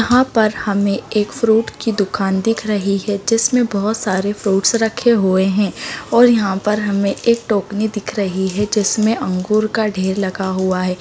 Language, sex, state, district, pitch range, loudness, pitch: Hindi, female, Bihar, Bhagalpur, 195-225 Hz, -17 LUFS, 210 Hz